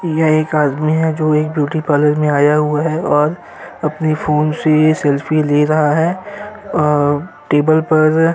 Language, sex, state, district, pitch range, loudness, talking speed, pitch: Hindi, male, Uttar Pradesh, Jyotiba Phule Nagar, 150-160 Hz, -15 LUFS, 170 wpm, 155 Hz